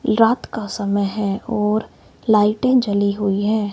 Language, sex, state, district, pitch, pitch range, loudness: Hindi, male, Himachal Pradesh, Shimla, 210 Hz, 200-220 Hz, -19 LUFS